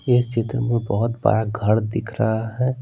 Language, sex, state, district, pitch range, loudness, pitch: Hindi, male, Bihar, Patna, 110-120 Hz, -21 LUFS, 115 Hz